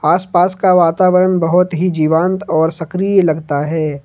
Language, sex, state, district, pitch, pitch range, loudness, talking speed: Hindi, male, Jharkhand, Ranchi, 175 Hz, 160-185 Hz, -14 LUFS, 150 wpm